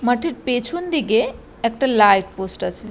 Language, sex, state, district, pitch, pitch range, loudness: Bengali, female, West Bengal, Purulia, 240 Hz, 210-270 Hz, -19 LUFS